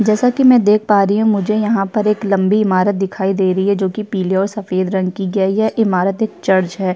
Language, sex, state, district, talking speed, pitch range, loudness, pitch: Hindi, female, Uttar Pradesh, Jyotiba Phule Nagar, 260 wpm, 190-215 Hz, -15 LUFS, 200 Hz